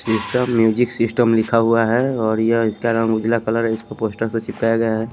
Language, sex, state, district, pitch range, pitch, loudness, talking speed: Hindi, male, Punjab, Kapurthala, 110-115 Hz, 115 Hz, -18 LUFS, 220 wpm